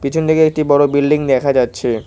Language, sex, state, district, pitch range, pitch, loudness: Bengali, male, West Bengal, Cooch Behar, 130-155 Hz, 140 Hz, -14 LUFS